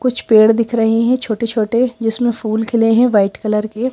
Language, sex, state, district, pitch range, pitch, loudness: Hindi, female, Madhya Pradesh, Bhopal, 220-240 Hz, 225 Hz, -15 LUFS